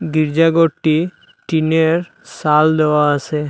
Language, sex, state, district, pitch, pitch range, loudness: Bengali, male, Assam, Hailakandi, 155 Hz, 150-165 Hz, -15 LUFS